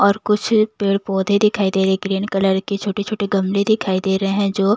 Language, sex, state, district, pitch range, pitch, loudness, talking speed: Hindi, female, Bihar, Patna, 195-205 Hz, 200 Hz, -18 LUFS, 215 wpm